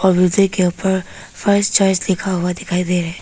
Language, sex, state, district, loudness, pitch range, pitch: Hindi, female, Arunachal Pradesh, Papum Pare, -17 LUFS, 180-195 Hz, 185 Hz